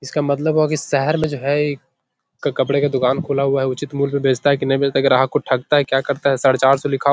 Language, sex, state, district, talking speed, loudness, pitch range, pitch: Hindi, male, Bihar, Jahanabad, 295 wpm, -18 LUFS, 135-145 Hz, 140 Hz